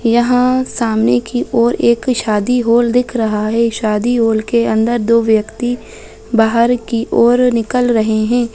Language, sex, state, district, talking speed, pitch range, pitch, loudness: Hindi, female, Bihar, Saharsa, 150 wpm, 225-245 Hz, 235 Hz, -14 LUFS